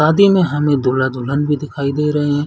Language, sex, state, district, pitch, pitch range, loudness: Hindi, male, Chhattisgarh, Bilaspur, 145 Hz, 140-150 Hz, -16 LUFS